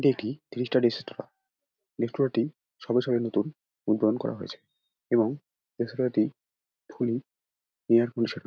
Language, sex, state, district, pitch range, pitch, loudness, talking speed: Bengali, male, West Bengal, Dakshin Dinajpur, 115-140 Hz, 125 Hz, -28 LUFS, 100 wpm